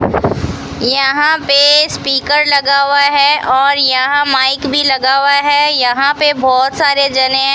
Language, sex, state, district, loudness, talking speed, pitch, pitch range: Hindi, female, Rajasthan, Bikaner, -11 LUFS, 150 wpm, 280 Hz, 265-290 Hz